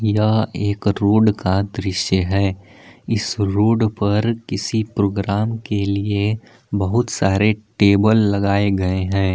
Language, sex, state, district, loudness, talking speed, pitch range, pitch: Hindi, male, Jharkhand, Palamu, -19 LUFS, 120 wpm, 100-110 Hz, 100 Hz